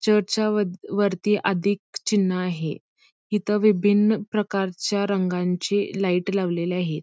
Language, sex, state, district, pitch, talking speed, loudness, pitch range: Marathi, female, Karnataka, Belgaum, 200 Hz, 100 wpm, -23 LUFS, 180-210 Hz